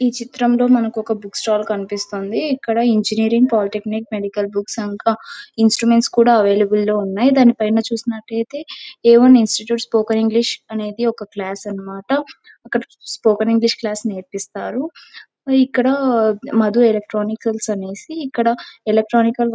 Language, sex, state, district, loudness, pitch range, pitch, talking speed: Telugu, female, Andhra Pradesh, Chittoor, -17 LUFS, 210-240 Hz, 225 Hz, 120 wpm